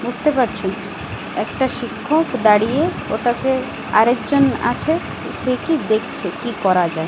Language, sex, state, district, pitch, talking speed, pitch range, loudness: Bengali, female, Odisha, Malkangiri, 245 Hz, 125 wpm, 215-265 Hz, -19 LUFS